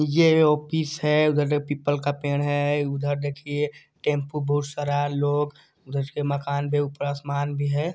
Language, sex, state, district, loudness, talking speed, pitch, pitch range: Hindi, male, Chhattisgarh, Sarguja, -24 LUFS, 175 wpm, 145 Hz, 145-150 Hz